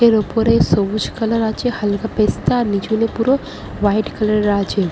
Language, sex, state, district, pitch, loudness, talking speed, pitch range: Bengali, female, West Bengal, Malda, 220 Hz, -17 LUFS, 170 wpm, 205-225 Hz